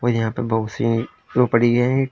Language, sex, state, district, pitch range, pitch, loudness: Hindi, male, Uttar Pradesh, Shamli, 115-125 Hz, 120 Hz, -20 LUFS